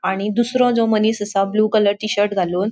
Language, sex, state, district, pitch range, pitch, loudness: Konkani, female, Goa, North and South Goa, 195-220 Hz, 210 Hz, -18 LUFS